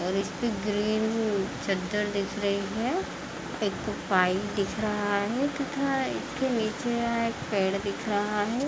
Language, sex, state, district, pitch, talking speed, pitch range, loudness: Hindi, female, Uttar Pradesh, Hamirpur, 210 Hz, 140 wpm, 200-235 Hz, -28 LUFS